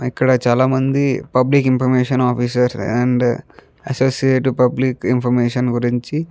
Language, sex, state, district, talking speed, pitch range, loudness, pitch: Telugu, male, Andhra Pradesh, Guntur, 115 wpm, 125-130 Hz, -17 LUFS, 125 Hz